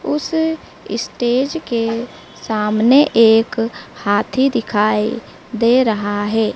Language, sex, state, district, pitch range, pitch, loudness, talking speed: Hindi, female, Madhya Pradesh, Dhar, 215-255 Hz, 230 Hz, -16 LUFS, 90 wpm